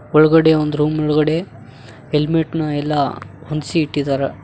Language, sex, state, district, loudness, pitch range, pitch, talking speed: Kannada, male, Karnataka, Koppal, -17 LUFS, 140-155 Hz, 150 Hz, 120 wpm